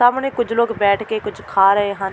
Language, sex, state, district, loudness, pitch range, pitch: Punjabi, female, Delhi, New Delhi, -18 LUFS, 200-235 Hz, 215 Hz